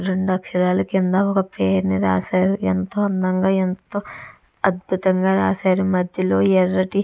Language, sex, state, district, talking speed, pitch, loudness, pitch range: Telugu, female, Andhra Pradesh, Chittoor, 120 wpm, 185 Hz, -20 LUFS, 180-190 Hz